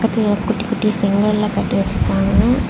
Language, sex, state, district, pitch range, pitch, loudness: Tamil, female, Tamil Nadu, Chennai, 205-220 Hz, 210 Hz, -17 LUFS